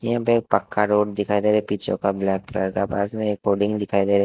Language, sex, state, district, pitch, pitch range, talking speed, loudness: Hindi, male, Haryana, Jhajjar, 105 Hz, 100-105 Hz, 310 wpm, -22 LUFS